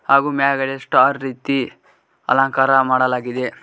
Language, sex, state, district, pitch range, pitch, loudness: Kannada, male, Karnataka, Koppal, 130-135 Hz, 135 Hz, -17 LUFS